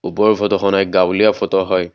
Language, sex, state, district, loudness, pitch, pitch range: Assamese, male, Assam, Kamrup Metropolitan, -15 LUFS, 95 Hz, 95-105 Hz